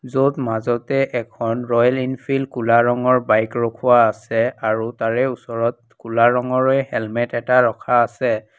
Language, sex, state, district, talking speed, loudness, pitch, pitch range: Assamese, female, Assam, Kamrup Metropolitan, 135 wpm, -19 LUFS, 120 Hz, 115-125 Hz